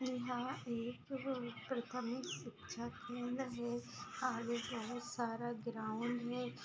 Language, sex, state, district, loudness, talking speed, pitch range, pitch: Hindi, female, Bihar, Bhagalpur, -43 LUFS, 110 wpm, 235-250 Hz, 240 Hz